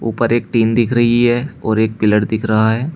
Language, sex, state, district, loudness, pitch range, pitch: Hindi, male, Uttar Pradesh, Shamli, -15 LUFS, 110-120 Hz, 115 Hz